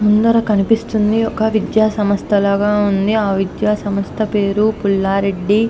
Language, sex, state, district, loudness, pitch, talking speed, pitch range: Telugu, female, Andhra Pradesh, Anantapur, -16 LUFS, 210 Hz, 115 wpm, 200-220 Hz